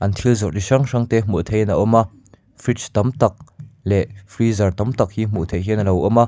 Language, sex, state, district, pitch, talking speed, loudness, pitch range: Mizo, male, Mizoram, Aizawl, 110 Hz, 260 wpm, -19 LUFS, 100-120 Hz